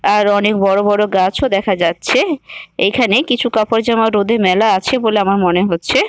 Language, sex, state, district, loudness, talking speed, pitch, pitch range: Bengali, female, West Bengal, Malda, -14 LUFS, 195 wpm, 205 Hz, 195-225 Hz